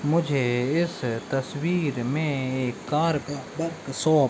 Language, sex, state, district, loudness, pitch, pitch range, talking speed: Hindi, male, Chhattisgarh, Bilaspur, -26 LUFS, 145 Hz, 130-160 Hz, 125 wpm